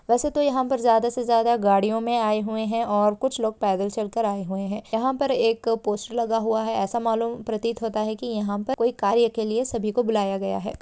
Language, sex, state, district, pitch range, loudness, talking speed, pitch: Hindi, female, Jharkhand, Sahebganj, 210-235 Hz, -24 LUFS, 250 wpm, 225 Hz